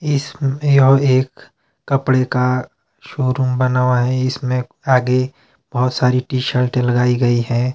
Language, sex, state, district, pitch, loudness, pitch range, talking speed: Hindi, male, Himachal Pradesh, Shimla, 130 Hz, -17 LUFS, 125-135 Hz, 140 wpm